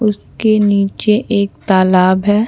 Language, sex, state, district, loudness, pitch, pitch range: Hindi, female, Chhattisgarh, Bastar, -13 LUFS, 205 Hz, 190-215 Hz